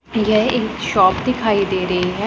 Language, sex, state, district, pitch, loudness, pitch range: Hindi, female, Punjab, Pathankot, 215 Hz, -17 LUFS, 185-225 Hz